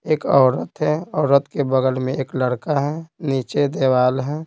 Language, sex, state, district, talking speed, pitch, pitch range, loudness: Hindi, male, Bihar, Patna, 175 wpm, 140 Hz, 130-150 Hz, -19 LUFS